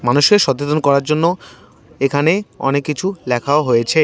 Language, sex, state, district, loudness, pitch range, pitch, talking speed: Bengali, male, West Bengal, Cooch Behar, -16 LUFS, 130-160 Hz, 145 Hz, 120 wpm